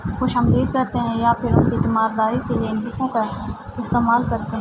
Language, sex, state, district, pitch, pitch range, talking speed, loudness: Urdu, female, Andhra Pradesh, Anantapur, 230 Hz, 220-240 Hz, 105 wpm, -20 LUFS